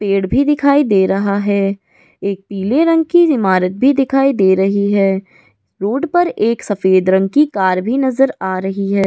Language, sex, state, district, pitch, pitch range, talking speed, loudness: Hindi, female, Goa, North and South Goa, 200 Hz, 195-270 Hz, 185 wpm, -14 LUFS